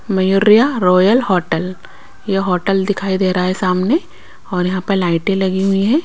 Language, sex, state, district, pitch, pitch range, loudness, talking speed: Hindi, female, Bihar, Kaimur, 190 Hz, 185-200 Hz, -15 LUFS, 170 wpm